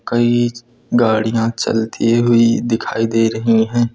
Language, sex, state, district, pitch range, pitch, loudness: Hindi, male, Uttar Pradesh, Lucknow, 115-120 Hz, 115 Hz, -16 LUFS